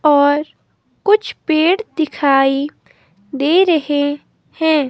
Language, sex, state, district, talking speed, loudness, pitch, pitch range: Hindi, female, Himachal Pradesh, Shimla, 85 wpm, -16 LUFS, 295 Hz, 285-320 Hz